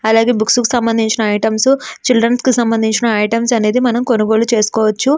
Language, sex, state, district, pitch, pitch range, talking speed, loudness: Telugu, female, Andhra Pradesh, Srikakulam, 230 Hz, 220-245 Hz, 140 wpm, -13 LUFS